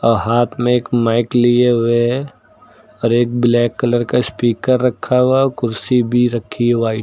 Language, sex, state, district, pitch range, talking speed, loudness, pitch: Hindi, male, Uttar Pradesh, Lucknow, 120-125 Hz, 205 wpm, -15 LUFS, 120 Hz